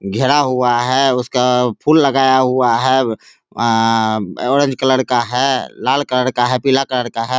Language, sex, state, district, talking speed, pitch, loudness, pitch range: Hindi, male, Bihar, Begusarai, 180 wpm, 125 Hz, -15 LUFS, 120-130 Hz